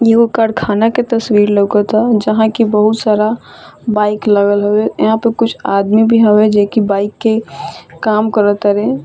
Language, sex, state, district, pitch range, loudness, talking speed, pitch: Bhojpuri, female, Bihar, Saran, 205-225 Hz, -12 LUFS, 160 wpm, 215 Hz